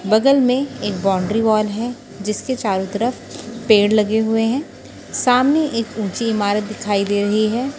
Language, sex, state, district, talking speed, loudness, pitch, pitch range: Hindi, female, Maharashtra, Washim, 160 wpm, -18 LUFS, 220 Hz, 205-245 Hz